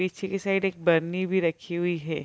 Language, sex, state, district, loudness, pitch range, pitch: Hindi, female, Bihar, Kishanganj, -26 LUFS, 170-195 Hz, 180 Hz